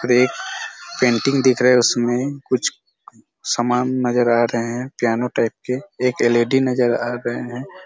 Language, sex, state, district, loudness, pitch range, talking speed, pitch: Hindi, male, Chhattisgarh, Raigarh, -19 LUFS, 120-130 Hz, 170 wpm, 125 Hz